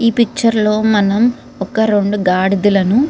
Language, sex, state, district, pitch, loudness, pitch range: Telugu, female, Telangana, Karimnagar, 210 Hz, -14 LUFS, 200-230 Hz